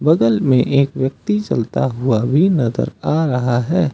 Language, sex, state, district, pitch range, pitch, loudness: Hindi, male, Uttar Pradesh, Lucknow, 120-160 Hz, 135 Hz, -17 LUFS